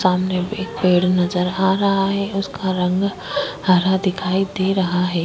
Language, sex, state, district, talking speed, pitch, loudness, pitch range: Hindi, female, Chhattisgarh, Korba, 160 wpm, 185 Hz, -19 LUFS, 180-195 Hz